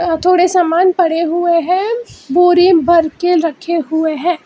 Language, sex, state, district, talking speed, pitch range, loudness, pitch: Hindi, female, Karnataka, Bangalore, 175 wpm, 330-360 Hz, -13 LUFS, 345 Hz